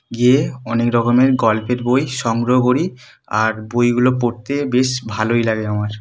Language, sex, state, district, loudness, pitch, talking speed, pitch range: Bengali, male, West Bengal, Kolkata, -17 LUFS, 120 Hz, 140 wpm, 110-125 Hz